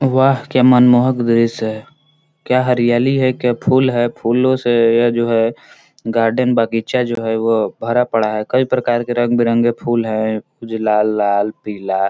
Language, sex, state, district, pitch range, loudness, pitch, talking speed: Hindi, male, Bihar, Gaya, 115-125 Hz, -15 LUFS, 120 Hz, 165 wpm